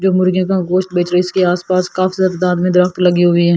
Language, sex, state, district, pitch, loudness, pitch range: Hindi, female, Delhi, New Delhi, 180 Hz, -14 LUFS, 180-185 Hz